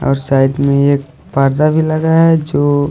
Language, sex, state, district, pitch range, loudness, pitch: Hindi, male, Haryana, Rohtak, 135-155 Hz, -13 LUFS, 145 Hz